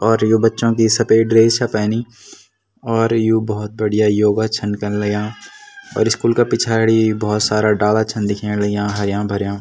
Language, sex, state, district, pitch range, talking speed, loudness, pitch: Garhwali, male, Uttarakhand, Tehri Garhwal, 105-115 Hz, 175 wpm, -16 LUFS, 110 Hz